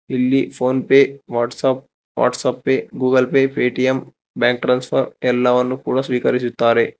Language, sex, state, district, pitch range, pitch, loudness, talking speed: Kannada, male, Karnataka, Bangalore, 125-130 Hz, 125 Hz, -18 LUFS, 130 wpm